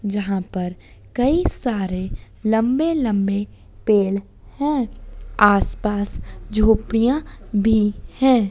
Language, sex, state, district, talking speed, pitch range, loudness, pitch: Hindi, female, Madhya Pradesh, Dhar, 85 wpm, 200-245 Hz, -20 LUFS, 215 Hz